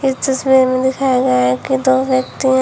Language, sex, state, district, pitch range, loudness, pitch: Hindi, female, Uttar Pradesh, Shamli, 255-265 Hz, -15 LUFS, 260 Hz